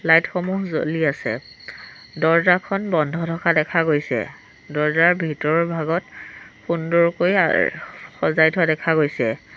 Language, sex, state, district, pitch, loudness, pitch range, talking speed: Assamese, female, Assam, Sonitpur, 165 Hz, -20 LUFS, 150-170 Hz, 105 wpm